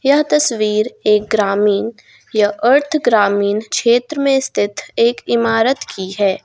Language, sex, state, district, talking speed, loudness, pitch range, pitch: Hindi, female, Jharkhand, Garhwa, 130 wpm, -15 LUFS, 210-265 Hz, 225 Hz